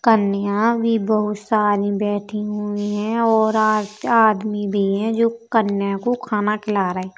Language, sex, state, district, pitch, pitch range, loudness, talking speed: Bundeli, female, Uttar Pradesh, Jalaun, 210 Hz, 205-225 Hz, -19 LUFS, 160 wpm